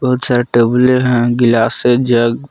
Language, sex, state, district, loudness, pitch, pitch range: Hindi, male, Jharkhand, Palamu, -12 LUFS, 120 Hz, 120-125 Hz